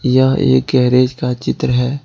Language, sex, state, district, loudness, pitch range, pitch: Hindi, male, Jharkhand, Ranchi, -14 LUFS, 125-135 Hz, 130 Hz